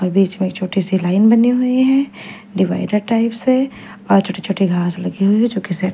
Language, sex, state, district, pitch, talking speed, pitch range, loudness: Hindi, female, Punjab, Fazilka, 195 Hz, 220 wpm, 185-230 Hz, -16 LUFS